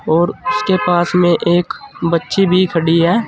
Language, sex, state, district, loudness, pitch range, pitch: Hindi, male, Uttar Pradesh, Saharanpur, -14 LUFS, 170-185 Hz, 175 Hz